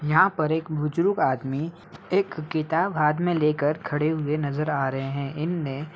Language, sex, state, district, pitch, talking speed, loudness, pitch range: Hindi, male, Uttar Pradesh, Ghazipur, 155 Hz, 180 wpm, -25 LUFS, 145-165 Hz